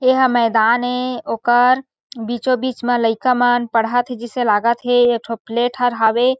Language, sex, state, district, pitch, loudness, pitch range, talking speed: Chhattisgarhi, female, Chhattisgarh, Sarguja, 245 Hz, -17 LUFS, 235-250 Hz, 190 wpm